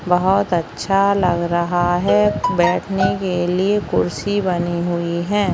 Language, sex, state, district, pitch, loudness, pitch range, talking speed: Hindi, female, Maharashtra, Chandrapur, 180 Hz, -18 LUFS, 175-195 Hz, 130 wpm